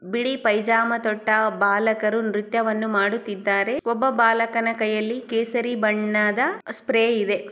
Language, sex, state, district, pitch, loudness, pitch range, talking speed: Kannada, female, Karnataka, Chamarajanagar, 220 Hz, -22 LUFS, 210-230 Hz, 95 wpm